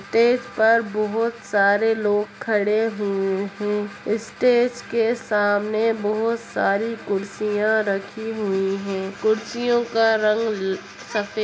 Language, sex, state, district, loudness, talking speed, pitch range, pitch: Hindi, female, Bihar, Samastipur, -22 LUFS, 115 wpm, 205-225 Hz, 215 Hz